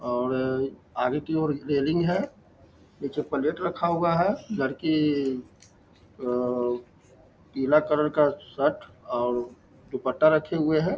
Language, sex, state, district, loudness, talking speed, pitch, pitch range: Hindi, male, Bihar, Lakhisarai, -26 LUFS, 115 wpm, 145 Hz, 125-155 Hz